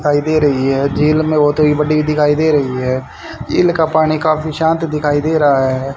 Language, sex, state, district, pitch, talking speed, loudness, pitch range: Hindi, male, Haryana, Rohtak, 150 Hz, 220 wpm, -14 LUFS, 140-155 Hz